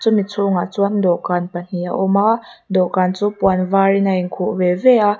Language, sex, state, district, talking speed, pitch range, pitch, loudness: Mizo, female, Mizoram, Aizawl, 220 wpm, 180-205 Hz, 195 Hz, -17 LUFS